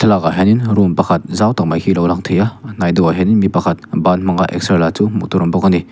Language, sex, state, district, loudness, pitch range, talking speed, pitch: Mizo, male, Mizoram, Aizawl, -14 LUFS, 90-105 Hz, 305 wpm, 95 Hz